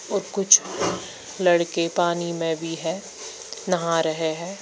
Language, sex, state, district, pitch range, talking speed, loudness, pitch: Hindi, female, Bihar, Patna, 165-195 Hz, 130 wpm, -22 LUFS, 175 Hz